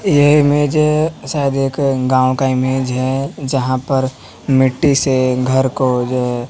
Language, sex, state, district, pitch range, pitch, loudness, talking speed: Hindi, male, Haryana, Rohtak, 130-140 Hz, 130 Hz, -15 LUFS, 150 wpm